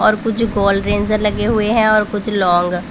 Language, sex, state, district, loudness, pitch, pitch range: Hindi, female, Punjab, Pathankot, -15 LUFS, 210 Hz, 200-215 Hz